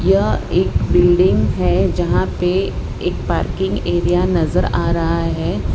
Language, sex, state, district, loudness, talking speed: Hindi, female, Gujarat, Valsad, -17 LUFS, 145 wpm